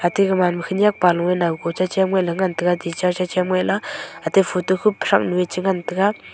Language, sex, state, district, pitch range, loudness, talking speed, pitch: Wancho, female, Arunachal Pradesh, Longding, 175-190 Hz, -20 LUFS, 210 wpm, 185 Hz